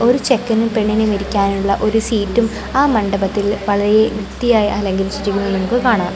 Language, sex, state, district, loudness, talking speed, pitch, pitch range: Malayalam, female, Kerala, Kozhikode, -16 LUFS, 135 wpm, 210 Hz, 200-225 Hz